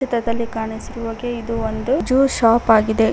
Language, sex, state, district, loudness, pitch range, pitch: Kannada, female, Karnataka, Koppal, -19 LUFS, 225-240 Hz, 230 Hz